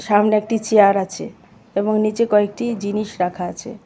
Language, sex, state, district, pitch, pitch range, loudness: Bengali, female, Tripura, West Tripura, 210 Hz, 200-220 Hz, -19 LUFS